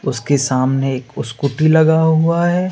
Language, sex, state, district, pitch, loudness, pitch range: Hindi, male, Jharkhand, Deoghar, 145 Hz, -15 LUFS, 135-160 Hz